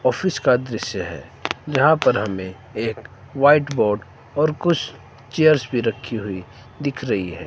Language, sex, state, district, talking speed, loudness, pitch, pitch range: Hindi, male, Himachal Pradesh, Shimla, 155 wpm, -21 LUFS, 120 Hz, 110-140 Hz